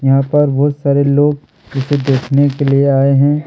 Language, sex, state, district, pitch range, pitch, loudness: Hindi, male, Chhattisgarh, Kabirdham, 135-145 Hz, 140 Hz, -13 LUFS